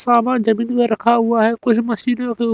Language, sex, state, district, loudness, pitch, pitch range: Hindi, male, Haryana, Rohtak, -17 LUFS, 235 Hz, 230-240 Hz